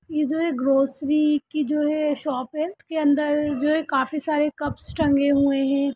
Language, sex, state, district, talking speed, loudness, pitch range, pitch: Hindi, male, Bihar, Darbhanga, 190 wpm, -22 LUFS, 280-305 Hz, 295 Hz